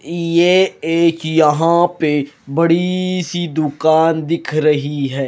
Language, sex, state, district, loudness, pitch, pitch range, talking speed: Hindi, male, Himachal Pradesh, Shimla, -15 LUFS, 165 Hz, 150-170 Hz, 115 wpm